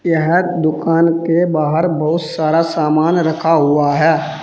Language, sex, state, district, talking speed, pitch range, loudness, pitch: Hindi, male, Uttar Pradesh, Saharanpur, 135 wpm, 155-165 Hz, -15 LUFS, 160 Hz